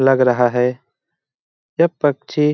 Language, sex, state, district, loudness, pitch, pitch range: Hindi, male, Bihar, Jamui, -17 LUFS, 135 Hz, 125-150 Hz